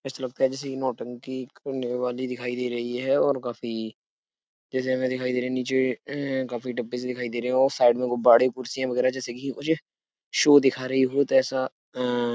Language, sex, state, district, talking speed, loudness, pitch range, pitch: Hindi, male, Uttar Pradesh, Etah, 225 wpm, -25 LUFS, 125-130 Hz, 130 Hz